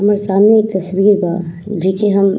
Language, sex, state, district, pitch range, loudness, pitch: Bhojpuri, female, Uttar Pradesh, Ghazipur, 190-205 Hz, -14 LUFS, 195 Hz